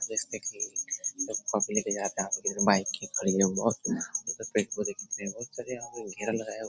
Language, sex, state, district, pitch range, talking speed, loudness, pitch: Hindi, male, Bihar, Jahanabad, 100-125 Hz, 125 wpm, -30 LUFS, 110 Hz